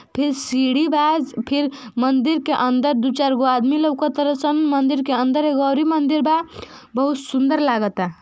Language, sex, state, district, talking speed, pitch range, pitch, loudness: Bhojpuri, female, Uttar Pradesh, Ghazipur, 175 wpm, 260-300 Hz, 280 Hz, -19 LUFS